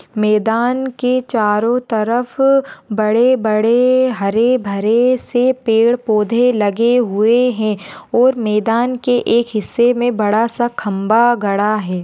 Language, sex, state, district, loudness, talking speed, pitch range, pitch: Hindi, female, Maharashtra, Aurangabad, -15 LUFS, 125 wpm, 215-245 Hz, 230 Hz